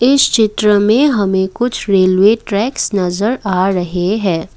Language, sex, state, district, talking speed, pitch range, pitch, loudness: Hindi, female, Assam, Kamrup Metropolitan, 145 wpm, 190-230 Hz, 205 Hz, -13 LUFS